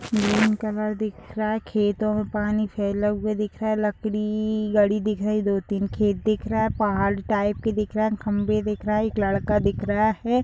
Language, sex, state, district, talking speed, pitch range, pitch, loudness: Hindi, female, Bihar, Gopalganj, 230 wpm, 205-215 Hz, 210 Hz, -24 LUFS